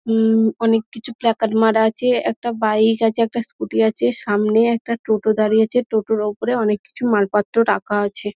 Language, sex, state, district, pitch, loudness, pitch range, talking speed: Bengali, female, West Bengal, Dakshin Dinajpur, 220 Hz, -18 LUFS, 210-230 Hz, 170 wpm